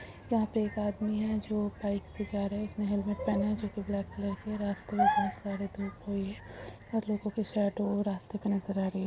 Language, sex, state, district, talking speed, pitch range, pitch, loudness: Hindi, female, Jharkhand, Sahebganj, 240 wpm, 200-210 Hz, 205 Hz, -33 LUFS